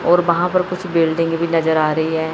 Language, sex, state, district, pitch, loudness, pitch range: Hindi, male, Chandigarh, Chandigarh, 165 Hz, -17 LUFS, 160-175 Hz